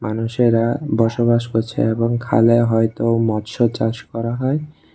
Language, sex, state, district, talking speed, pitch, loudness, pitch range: Bengali, male, Tripura, West Tripura, 110 wpm, 115 Hz, -18 LUFS, 115-120 Hz